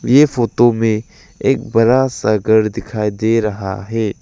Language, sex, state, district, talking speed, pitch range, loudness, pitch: Hindi, male, Arunachal Pradesh, Lower Dibang Valley, 155 wpm, 110-120 Hz, -15 LUFS, 115 Hz